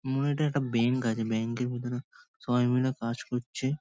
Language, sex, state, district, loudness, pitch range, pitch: Bengali, male, West Bengal, Kolkata, -30 LUFS, 120-130 Hz, 125 Hz